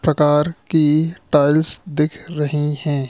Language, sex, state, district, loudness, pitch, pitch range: Hindi, male, Madhya Pradesh, Katni, -17 LUFS, 150 Hz, 150-160 Hz